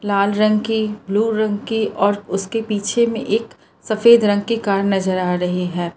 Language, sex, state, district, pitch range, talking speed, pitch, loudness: Hindi, female, Gujarat, Valsad, 195-220 Hz, 190 wpm, 210 Hz, -18 LUFS